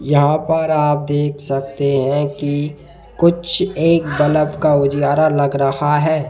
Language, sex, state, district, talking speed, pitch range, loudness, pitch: Hindi, male, Madhya Pradesh, Bhopal, 145 wpm, 145-155 Hz, -16 LUFS, 145 Hz